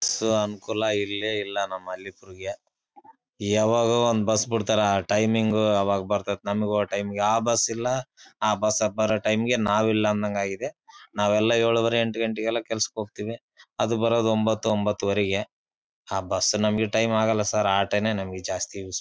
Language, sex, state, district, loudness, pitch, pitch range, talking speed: Kannada, male, Karnataka, Bellary, -24 LUFS, 105 Hz, 100-110 Hz, 140 wpm